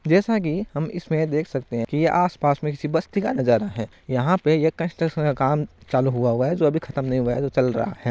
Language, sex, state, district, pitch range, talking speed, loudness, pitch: Marwari, male, Rajasthan, Nagaur, 130-165 Hz, 260 wpm, -22 LUFS, 150 Hz